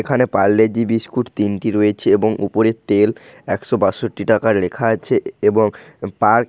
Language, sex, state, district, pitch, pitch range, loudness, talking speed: Bengali, male, West Bengal, Jhargram, 110 Hz, 105-115 Hz, -17 LUFS, 155 wpm